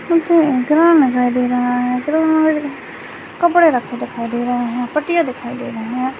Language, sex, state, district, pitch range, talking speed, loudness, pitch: Hindi, female, West Bengal, Dakshin Dinajpur, 245-315 Hz, 125 wpm, -16 LUFS, 260 Hz